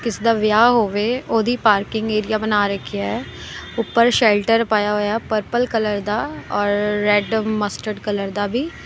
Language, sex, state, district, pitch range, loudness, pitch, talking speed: Punjabi, female, Punjab, Kapurthala, 205-225 Hz, -19 LUFS, 215 Hz, 150 wpm